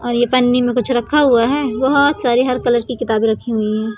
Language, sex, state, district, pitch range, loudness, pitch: Hindi, female, Madhya Pradesh, Umaria, 230-255 Hz, -15 LUFS, 245 Hz